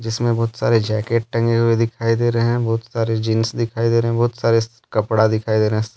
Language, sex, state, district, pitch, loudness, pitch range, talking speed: Hindi, male, Jharkhand, Deoghar, 115 Hz, -19 LUFS, 110-115 Hz, 240 wpm